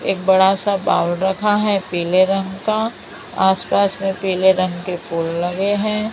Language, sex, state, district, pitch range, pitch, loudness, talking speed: Hindi, female, Maharashtra, Mumbai Suburban, 185-200 Hz, 190 Hz, -18 LUFS, 175 wpm